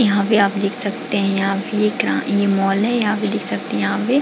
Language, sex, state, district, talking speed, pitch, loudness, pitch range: Hindi, female, Chhattisgarh, Bilaspur, 285 wpm, 205 Hz, -18 LUFS, 200-215 Hz